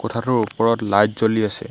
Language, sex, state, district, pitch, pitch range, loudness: Assamese, male, Assam, Hailakandi, 110 Hz, 105-115 Hz, -19 LUFS